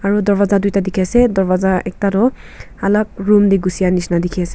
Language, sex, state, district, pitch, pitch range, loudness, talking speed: Nagamese, female, Nagaland, Kohima, 195 Hz, 185-205 Hz, -15 LUFS, 195 wpm